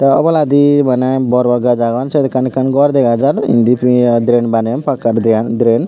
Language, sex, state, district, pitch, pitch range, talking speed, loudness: Chakma, male, Tripura, Unakoti, 125 Hz, 120-140 Hz, 205 wpm, -12 LUFS